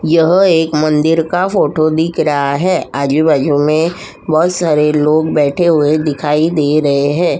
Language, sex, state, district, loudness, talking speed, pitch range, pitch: Hindi, female, Uttar Pradesh, Jyotiba Phule Nagar, -13 LUFS, 170 wpm, 150-165 Hz, 155 Hz